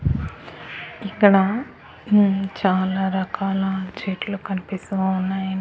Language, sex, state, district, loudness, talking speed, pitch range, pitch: Telugu, female, Andhra Pradesh, Annamaya, -22 LUFS, 75 wpm, 190-200 Hz, 195 Hz